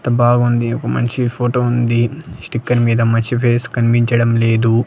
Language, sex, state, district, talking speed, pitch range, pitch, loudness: Telugu, male, Andhra Pradesh, Annamaya, 150 wpm, 115-120 Hz, 120 Hz, -15 LUFS